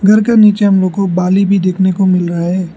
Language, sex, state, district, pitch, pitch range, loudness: Hindi, male, Arunachal Pradesh, Lower Dibang Valley, 190 Hz, 180-200 Hz, -11 LUFS